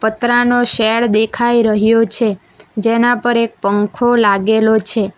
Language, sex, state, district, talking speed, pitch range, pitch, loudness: Gujarati, female, Gujarat, Valsad, 125 wpm, 215-240 Hz, 225 Hz, -13 LUFS